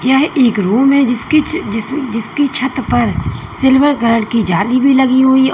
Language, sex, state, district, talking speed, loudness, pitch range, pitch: Hindi, female, Uttar Pradesh, Lalitpur, 205 wpm, -13 LUFS, 230-275 Hz, 260 Hz